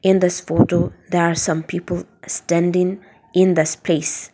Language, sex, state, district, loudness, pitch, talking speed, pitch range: English, female, Nagaland, Dimapur, -19 LUFS, 175 Hz, 150 wpm, 165-180 Hz